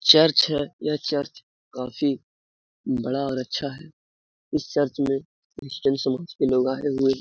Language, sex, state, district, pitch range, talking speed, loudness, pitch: Hindi, male, Bihar, Araria, 125-145 Hz, 165 wpm, -24 LUFS, 135 Hz